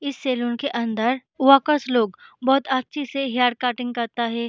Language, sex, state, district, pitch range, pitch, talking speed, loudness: Hindi, female, Bihar, Begusarai, 235-275 Hz, 250 Hz, 175 wpm, -22 LUFS